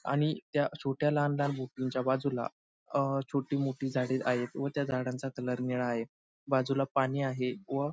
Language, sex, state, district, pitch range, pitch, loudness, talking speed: Marathi, male, Maharashtra, Sindhudurg, 130-140 Hz, 135 Hz, -32 LUFS, 180 wpm